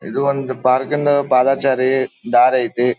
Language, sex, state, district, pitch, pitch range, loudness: Kannada, male, Karnataka, Dharwad, 130 Hz, 125-140 Hz, -16 LUFS